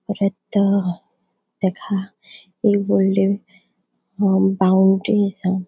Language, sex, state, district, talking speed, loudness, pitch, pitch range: Konkani, female, Goa, North and South Goa, 75 wpm, -19 LUFS, 195 Hz, 190-200 Hz